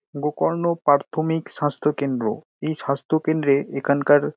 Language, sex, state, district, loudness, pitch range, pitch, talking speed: Bengali, male, West Bengal, Dakshin Dinajpur, -22 LUFS, 140-155 Hz, 145 Hz, 80 wpm